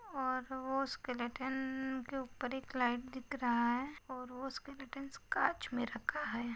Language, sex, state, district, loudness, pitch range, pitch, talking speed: Hindi, female, Maharashtra, Nagpur, -39 LUFS, 245-270 Hz, 260 Hz, 155 wpm